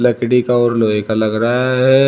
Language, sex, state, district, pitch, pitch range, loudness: Hindi, male, Uttar Pradesh, Shamli, 120 Hz, 110-125 Hz, -15 LUFS